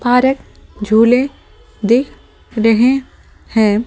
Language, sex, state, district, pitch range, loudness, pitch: Hindi, female, Delhi, New Delhi, 220-260 Hz, -14 LUFS, 240 Hz